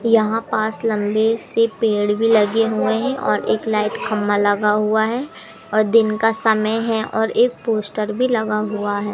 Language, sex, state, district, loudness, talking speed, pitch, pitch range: Hindi, female, Madhya Pradesh, Umaria, -18 LUFS, 175 wpm, 220 Hz, 215-225 Hz